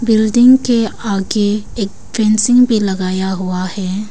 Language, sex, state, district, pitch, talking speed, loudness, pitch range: Hindi, female, Arunachal Pradesh, Papum Pare, 210 Hz, 115 wpm, -14 LUFS, 190-230 Hz